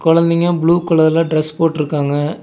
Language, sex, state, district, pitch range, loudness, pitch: Tamil, male, Tamil Nadu, Nilgiris, 155-170 Hz, -15 LUFS, 165 Hz